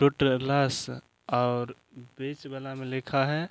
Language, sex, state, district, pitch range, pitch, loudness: Hindi, male, Maharashtra, Aurangabad, 130-140 Hz, 135 Hz, -29 LUFS